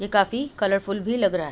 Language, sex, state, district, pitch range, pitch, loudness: Hindi, female, Uttar Pradesh, Budaun, 195-230 Hz, 200 Hz, -24 LUFS